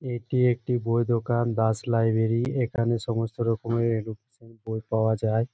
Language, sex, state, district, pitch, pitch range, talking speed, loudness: Bengali, male, West Bengal, Jhargram, 115 Hz, 110-120 Hz, 140 wpm, -26 LUFS